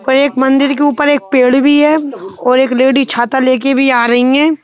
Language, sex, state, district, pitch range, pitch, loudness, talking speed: Hindi, male, Madhya Pradesh, Bhopal, 255-285 Hz, 270 Hz, -11 LUFS, 230 wpm